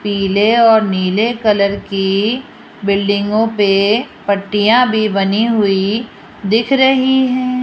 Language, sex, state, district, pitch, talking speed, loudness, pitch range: Hindi, female, Rajasthan, Jaipur, 210 Hz, 110 wpm, -14 LUFS, 200-235 Hz